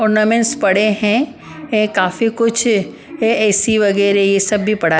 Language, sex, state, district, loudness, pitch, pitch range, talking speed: Hindi, female, Punjab, Pathankot, -15 LUFS, 215 Hz, 200-225 Hz, 145 wpm